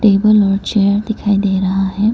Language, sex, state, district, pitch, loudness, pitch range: Hindi, female, Arunachal Pradesh, Lower Dibang Valley, 200 Hz, -14 LUFS, 195-210 Hz